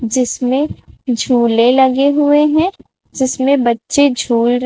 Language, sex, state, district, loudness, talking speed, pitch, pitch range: Hindi, female, Chhattisgarh, Raipur, -14 LUFS, 105 wpm, 255 Hz, 240-280 Hz